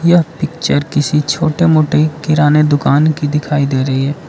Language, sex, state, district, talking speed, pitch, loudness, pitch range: Hindi, male, Arunachal Pradesh, Lower Dibang Valley, 170 wpm, 150 Hz, -13 LUFS, 145-155 Hz